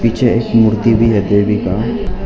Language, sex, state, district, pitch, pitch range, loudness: Hindi, male, Arunachal Pradesh, Lower Dibang Valley, 115 Hz, 105-115 Hz, -13 LUFS